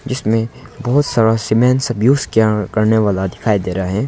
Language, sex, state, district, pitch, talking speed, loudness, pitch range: Hindi, male, Arunachal Pradesh, Longding, 110 Hz, 190 wpm, -15 LUFS, 105-125 Hz